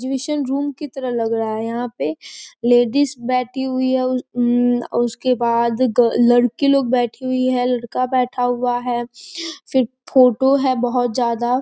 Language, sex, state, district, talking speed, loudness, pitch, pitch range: Hindi, female, Bihar, East Champaran, 160 wpm, -18 LUFS, 250 Hz, 240-260 Hz